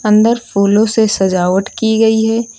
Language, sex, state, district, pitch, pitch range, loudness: Hindi, female, Uttar Pradesh, Lucknow, 220 Hz, 200-225 Hz, -13 LUFS